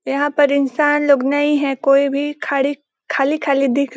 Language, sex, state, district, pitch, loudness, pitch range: Hindi, female, Chhattisgarh, Balrampur, 280 Hz, -17 LUFS, 275-295 Hz